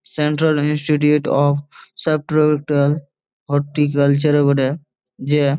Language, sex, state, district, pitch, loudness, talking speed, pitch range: Bengali, male, West Bengal, Malda, 145 Hz, -17 LUFS, 85 wpm, 140-150 Hz